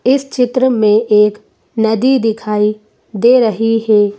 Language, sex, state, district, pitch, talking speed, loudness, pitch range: Hindi, female, Madhya Pradesh, Bhopal, 225 Hz, 130 wpm, -13 LUFS, 210-250 Hz